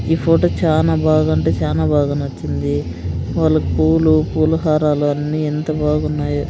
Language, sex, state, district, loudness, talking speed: Telugu, female, Andhra Pradesh, Sri Satya Sai, -17 LUFS, 130 wpm